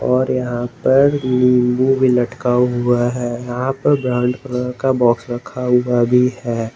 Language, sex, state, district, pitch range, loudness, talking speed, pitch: Hindi, male, Jharkhand, Garhwa, 120-130 Hz, -17 LUFS, 140 wpm, 125 Hz